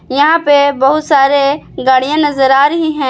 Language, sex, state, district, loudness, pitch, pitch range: Hindi, female, Jharkhand, Palamu, -11 LUFS, 285 Hz, 270-300 Hz